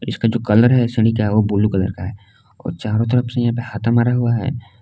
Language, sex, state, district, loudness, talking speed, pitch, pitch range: Hindi, male, Jharkhand, Palamu, -17 LUFS, 275 wpm, 115 Hz, 105-120 Hz